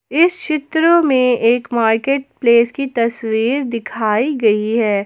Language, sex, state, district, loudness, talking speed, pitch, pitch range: Hindi, female, Jharkhand, Palamu, -16 LUFS, 130 wpm, 240 Hz, 225-275 Hz